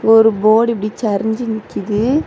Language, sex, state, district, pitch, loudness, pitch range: Tamil, female, Tamil Nadu, Kanyakumari, 220 Hz, -15 LUFS, 215-230 Hz